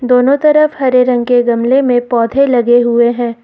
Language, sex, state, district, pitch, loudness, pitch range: Hindi, female, Uttar Pradesh, Lucknow, 245 Hz, -11 LUFS, 240-265 Hz